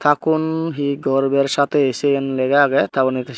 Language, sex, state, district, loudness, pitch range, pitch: Chakma, male, Tripura, Dhalai, -18 LUFS, 135-145 Hz, 140 Hz